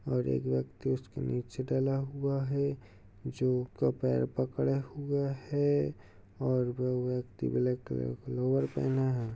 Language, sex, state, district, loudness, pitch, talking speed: Hindi, male, Uttar Pradesh, Hamirpur, -32 LUFS, 100 Hz, 155 wpm